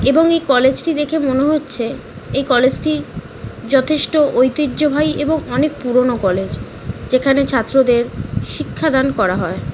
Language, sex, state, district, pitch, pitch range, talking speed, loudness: Bengali, female, West Bengal, Kolkata, 275 Hz, 250-300 Hz, 150 wpm, -16 LUFS